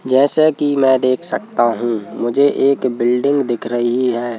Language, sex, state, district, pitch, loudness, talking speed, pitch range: Hindi, male, Madhya Pradesh, Bhopal, 130 Hz, -16 LUFS, 165 wpm, 120-140 Hz